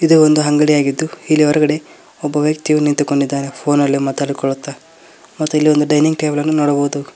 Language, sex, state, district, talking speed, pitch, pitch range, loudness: Kannada, male, Karnataka, Koppal, 140 wpm, 150 Hz, 145-155 Hz, -15 LUFS